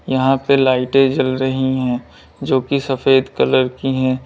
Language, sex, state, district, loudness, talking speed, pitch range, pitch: Hindi, male, Uttar Pradesh, Lalitpur, -16 LUFS, 170 wpm, 130-135 Hz, 130 Hz